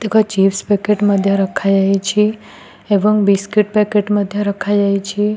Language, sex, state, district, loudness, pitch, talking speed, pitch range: Odia, female, Odisha, Nuapada, -15 LUFS, 205 Hz, 110 wpm, 195-210 Hz